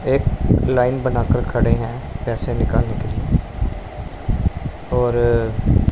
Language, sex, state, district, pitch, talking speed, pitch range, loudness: Hindi, male, Punjab, Pathankot, 120 Hz, 110 wpm, 115-125 Hz, -20 LUFS